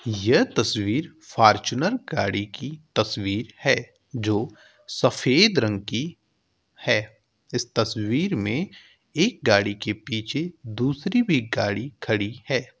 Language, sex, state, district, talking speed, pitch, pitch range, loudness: Hindi, male, Uttar Pradesh, Hamirpur, 110 wpm, 110 Hz, 105-130 Hz, -24 LUFS